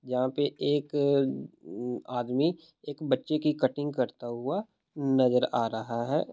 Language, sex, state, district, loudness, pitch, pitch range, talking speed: Hindi, male, Bihar, Muzaffarpur, -29 LUFS, 135 Hz, 125-145 Hz, 135 wpm